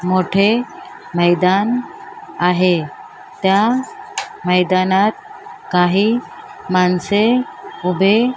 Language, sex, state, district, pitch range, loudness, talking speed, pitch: Marathi, female, Maharashtra, Mumbai Suburban, 180-255 Hz, -16 LUFS, 55 wpm, 200 Hz